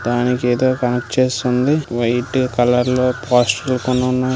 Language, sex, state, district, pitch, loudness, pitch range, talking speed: Telugu, male, Andhra Pradesh, Visakhapatnam, 125 Hz, -17 LUFS, 125-130 Hz, 165 wpm